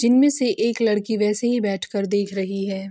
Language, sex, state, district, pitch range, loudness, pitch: Hindi, female, Bihar, Gopalganj, 195-235 Hz, -21 LUFS, 210 Hz